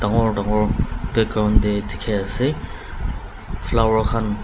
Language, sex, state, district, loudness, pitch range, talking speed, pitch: Nagamese, male, Nagaland, Dimapur, -21 LUFS, 95-110 Hz, 110 wpm, 105 Hz